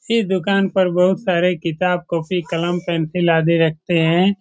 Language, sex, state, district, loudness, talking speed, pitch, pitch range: Hindi, male, Bihar, Supaul, -18 LUFS, 165 wpm, 180 Hz, 170-190 Hz